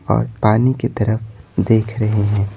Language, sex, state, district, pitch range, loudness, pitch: Hindi, male, Bihar, Patna, 105-110 Hz, -18 LUFS, 110 Hz